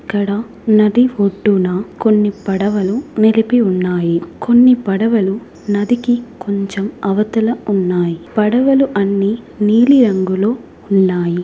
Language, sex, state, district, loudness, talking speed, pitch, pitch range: Telugu, female, Telangana, Nalgonda, -15 LUFS, 100 wpm, 205 Hz, 195-230 Hz